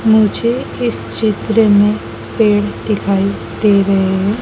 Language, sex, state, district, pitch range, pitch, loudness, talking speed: Hindi, female, Madhya Pradesh, Dhar, 200-220 Hz, 210 Hz, -14 LUFS, 120 wpm